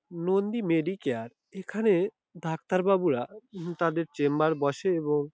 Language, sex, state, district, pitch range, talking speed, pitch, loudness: Bengali, male, West Bengal, Dakshin Dinajpur, 155-190 Hz, 100 wpm, 175 Hz, -28 LUFS